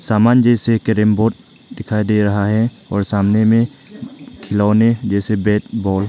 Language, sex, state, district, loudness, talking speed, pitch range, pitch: Hindi, male, Arunachal Pradesh, Lower Dibang Valley, -16 LUFS, 155 wpm, 105-115 Hz, 110 Hz